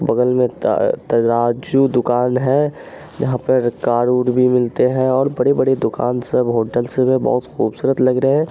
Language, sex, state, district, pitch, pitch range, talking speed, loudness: Angika, male, Bihar, Araria, 125 Hz, 120-130 Hz, 160 wpm, -17 LUFS